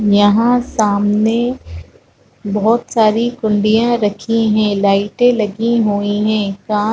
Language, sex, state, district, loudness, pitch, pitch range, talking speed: Hindi, female, Chhattisgarh, Rajnandgaon, -15 LUFS, 215 Hz, 205-230 Hz, 105 wpm